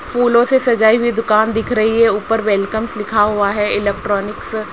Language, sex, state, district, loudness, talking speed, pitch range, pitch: Hindi, female, Haryana, Rohtak, -15 LUFS, 190 wpm, 210-230 Hz, 220 Hz